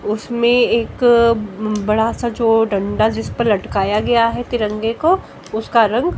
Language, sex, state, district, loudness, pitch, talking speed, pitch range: Hindi, female, Haryana, Jhajjar, -17 LUFS, 225 Hz, 145 wpm, 215-235 Hz